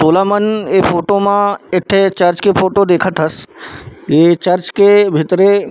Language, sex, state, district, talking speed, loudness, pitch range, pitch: Chhattisgarhi, male, Chhattisgarh, Bilaspur, 145 wpm, -12 LUFS, 175-200 Hz, 190 Hz